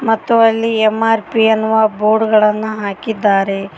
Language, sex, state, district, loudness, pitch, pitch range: Kannada, female, Karnataka, Koppal, -14 LUFS, 220 Hz, 210-225 Hz